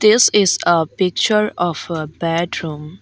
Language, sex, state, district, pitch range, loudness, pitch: English, female, Arunachal Pradesh, Lower Dibang Valley, 160-205 Hz, -17 LUFS, 175 Hz